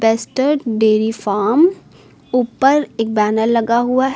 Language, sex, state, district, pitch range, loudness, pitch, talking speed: Hindi, female, Uttar Pradesh, Lucknow, 220-265 Hz, -16 LUFS, 230 Hz, 130 wpm